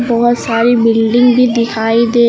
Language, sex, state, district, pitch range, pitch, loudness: Hindi, female, Uttar Pradesh, Lucknow, 230-240 Hz, 235 Hz, -11 LUFS